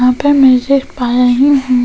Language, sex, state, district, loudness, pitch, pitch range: Hindi, female, Goa, North and South Goa, -11 LUFS, 255 Hz, 250-275 Hz